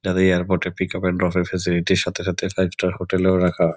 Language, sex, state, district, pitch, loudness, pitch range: Bengali, male, West Bengal, Kolkata, 90 Hz, -21 LUFS, 90-95 Hz